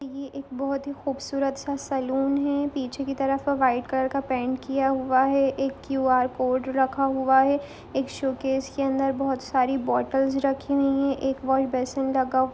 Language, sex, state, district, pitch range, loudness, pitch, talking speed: Hindi, female, Chhattisgarh, Korba, 265-275 Hz, -25 LUFS, 270 Hz, 185 wpm